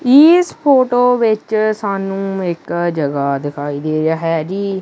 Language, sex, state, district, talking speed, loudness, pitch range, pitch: Punjabi, male, Punjab, Kapurthala, 135 wpm, -15 LUFS, 160-225 Hz, 195 Hz